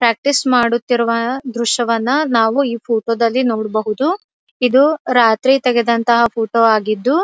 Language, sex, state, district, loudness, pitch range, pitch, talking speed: Kannada, female, Karnataka, Dharwad, -15 LUFS, 230-260 Hz, 235 Hz, 110 wpm